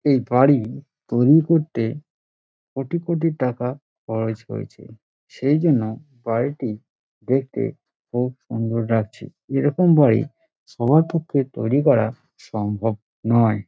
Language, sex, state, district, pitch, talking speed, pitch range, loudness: Bengali, male, West Bengal, Dakshin Dinajpur, 125 Hz, 105 wpm, 115-145 Hz, -21 LUFS